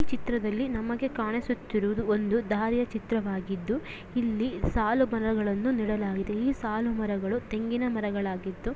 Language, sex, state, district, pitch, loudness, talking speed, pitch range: Kannada, female, Karnataka, Dharwad, 220 Hz, -29 LUFS, 95 wpm, 210-240 Hz